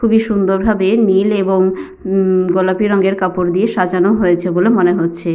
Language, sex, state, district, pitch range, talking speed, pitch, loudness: Bengali, female, Jharkhand, Sahebganj, 180-205 Hz, 155 wpm, 190 Hz, -14 LUFS